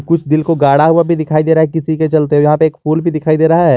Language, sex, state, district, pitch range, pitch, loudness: Hindi, male, Jharkhand, Garhwa, 155-160 Hz, 160 Hz, -12 LUFS